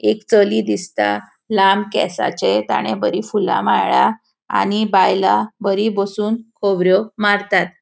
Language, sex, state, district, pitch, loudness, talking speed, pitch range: Konkani, female, Goa, North and South Goa, 200 Hz, -17 LUFS, 115 wpm, 185-215 Hz